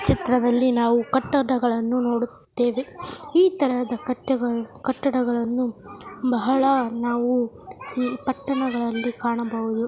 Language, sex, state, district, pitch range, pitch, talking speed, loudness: Kannada, female, Karnataka, Belgaum, 235-265 Hz, 245 Hz, 90 wpm, -23 LUFS